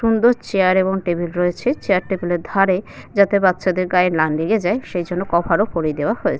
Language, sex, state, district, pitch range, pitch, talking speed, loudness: Bengali, female, West Bengal, Paschim Medinipur, 175-200 Hz, 185 Hz, 225 wpm, -18 LUFS